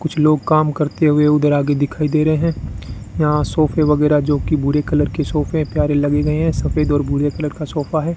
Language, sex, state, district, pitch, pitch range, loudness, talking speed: Hindi, male, Rajasthan, Bikaner, 150 Hz, 145-155 Hz, -17 LUFS, 220 wpm